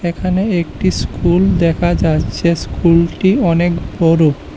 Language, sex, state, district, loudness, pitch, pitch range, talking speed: Bengali, male, Tripura, West Tripura, -14 LUFS, 170 Hz, 170-185 Hz, 105 wpm